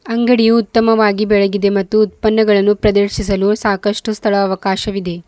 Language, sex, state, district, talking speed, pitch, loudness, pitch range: Kannada, female, Karnataka, Bidar, 100 wpm, 210 Hz, -14 LUFS, 200-220 Hz